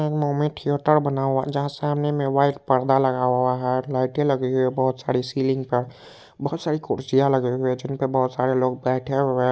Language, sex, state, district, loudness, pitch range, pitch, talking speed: Hindi, male, Bihar, Purnia, -22 LUFS, 130-140 Hz, 135 Hz, 225 wpm